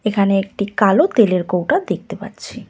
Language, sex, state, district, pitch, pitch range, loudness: Bengali, female, West Bengal, Cooch Behar, 200 Hz, 195-210 Hz, -17 LUFS